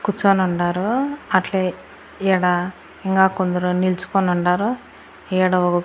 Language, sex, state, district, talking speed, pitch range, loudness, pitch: Telugu, female, Andhra Pradesh, Annamaya, 105 wpm, 180-195 Hz, -20 LUFS, 185 Hz